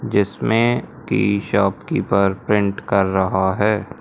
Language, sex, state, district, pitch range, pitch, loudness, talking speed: Hindi, male, Madhya Pradesh, Umaria, 95-105 Hz, 100 Hz, -19 LUFS, 120 wpm